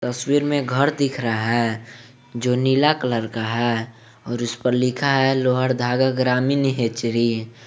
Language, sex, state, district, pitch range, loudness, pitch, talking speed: Hindi, male, Jharkhand, Garhwa, 115-130 Hz, -20 LUFS, 125 Hz, 155 wpm